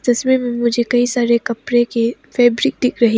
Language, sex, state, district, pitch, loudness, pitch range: Hindi, female, Arunachal Pradesh, Papum Pare, 240 Hz, -16 LUFS, 235-245 Hz